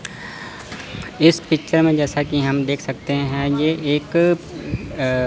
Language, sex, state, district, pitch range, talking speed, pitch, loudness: Hindi, male, Chandigarh, Chandigarh, 140-160 Hz, 135 wpm, 145 Hz, -19 LUFS